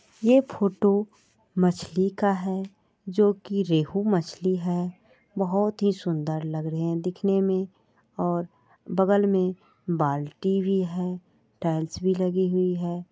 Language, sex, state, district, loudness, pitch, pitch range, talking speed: Maithili, female, Bihar, Supaul, -25 LUFS, 185 Hz, 175-195 Hz, 135 wpm